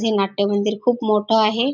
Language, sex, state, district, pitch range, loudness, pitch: Marathi, female, Maharashtra, Dhule, 205-225 Hz, -19 LUFS, 215 Hz